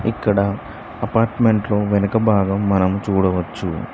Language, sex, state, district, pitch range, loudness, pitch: Telugu, male, Telangana, Mahabubabad, 100-110 Hz, -18 LUFS, 100 Hz